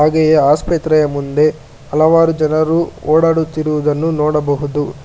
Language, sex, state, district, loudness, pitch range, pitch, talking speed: Kannada, male, Karnataka, Bangalore, -14 LUFS, 150-160 Hz, 155 Hz, 85 wpm